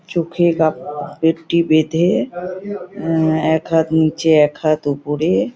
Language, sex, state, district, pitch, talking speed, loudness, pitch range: Bengali, female, West Bengal, North 24 Parganas, 160 Hz, 120 wpm, -17 LUFS, 155-170 Hz